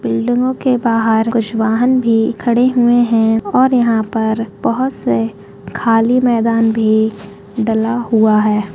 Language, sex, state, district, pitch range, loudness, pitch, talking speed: Hindi, female, Chhattisgarh, Kabirdham, 220-240 Hz, -14 LUFS, 225 Hz, 135 wpm